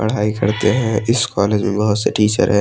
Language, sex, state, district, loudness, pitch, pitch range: Hindi, male, Odisha, Malkangiri, -17 LUFS, 105 Hz, 105-110 Hz